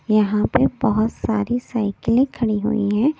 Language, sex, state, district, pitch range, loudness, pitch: Hindi, female, Delhi, New Delhi, 210-245 Hz, -20 LUFS, 220 Hz